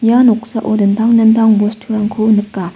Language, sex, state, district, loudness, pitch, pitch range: Garo, female, Meghalaya, West Garo Hills, -12 LUFS, 220 Hz, 210-225 Hz